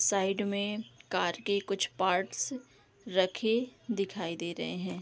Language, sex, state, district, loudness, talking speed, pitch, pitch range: Hindi, female, Bihar, Darbhanga, -32 LUFS, 130 wpm, 200 Hz, 185-215 Hz